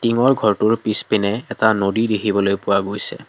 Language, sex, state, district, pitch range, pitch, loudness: Assamese, male, Assam, Kamrup Metropolitan, 100-115 Hz, 110 Hz, -18 LUFS